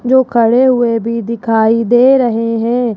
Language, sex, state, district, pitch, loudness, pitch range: Hindi, female, Rajasthan, Jaipur, 230 Hz, -12 LUFS, 230-245 Hz